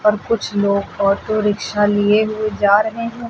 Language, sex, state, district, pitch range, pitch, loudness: Hindi, female, Uttar Pradesh, Lucknow, 205-215 Hz, 210 Hz, -17 LUFS